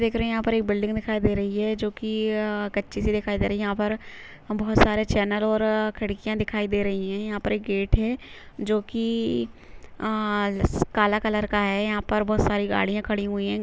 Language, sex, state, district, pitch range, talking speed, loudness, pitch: Hindi, female, Chhattisgarh, Rajnandgaon, 205-215 Hz, 225 wpm, -25 LUFS, 210 Hz